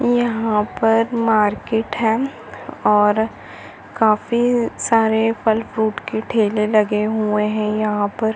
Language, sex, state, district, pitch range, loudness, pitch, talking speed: Hindi, female, Chhattisgarh, Bilaspur, 210-225 Hz, -18 LUFS, 220 Hz, 115 wpm